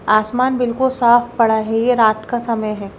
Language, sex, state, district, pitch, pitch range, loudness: Hindi, female, Himachal Pradesh, Shimla, 230 Hz, 220-245 Hz, -16 LUFS